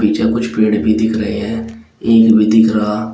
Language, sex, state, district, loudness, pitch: Hindi, male, Uttar Pradesh, Shamli, -13 LUFS, 110 Hz